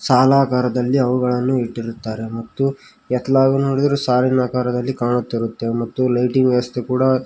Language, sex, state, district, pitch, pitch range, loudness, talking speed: Kannada, male, Karnataka, Koppal, 125 Hz, 120-130 Hz, -18 LUFS, 105 wpm